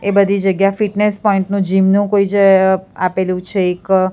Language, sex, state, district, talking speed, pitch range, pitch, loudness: Gujarati, female, Gujarat, Gandhinagar, 190 wpm, 190-200 Hz, 195 Hz, -14 LUFS